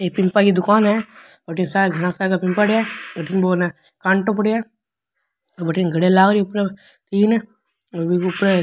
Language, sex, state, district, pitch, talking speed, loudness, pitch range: Rajasthani, male, Rajasthan, Nagaur, 190 Hz, 215 wpm, -18 LUFS, 180-210 Hz